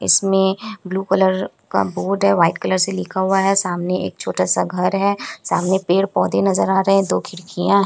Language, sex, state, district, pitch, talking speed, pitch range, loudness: Hindi, female, Bihar, Kishanganj, 190 Hz, 205 wpm, 185-195 Hz, -18 LUFS